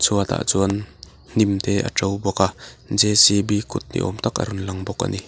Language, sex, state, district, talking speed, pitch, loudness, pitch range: Mizo, male, Mizoram, Aizawl, 240 wpm, 100 Hz, -20 LUFS, 95-105 Hz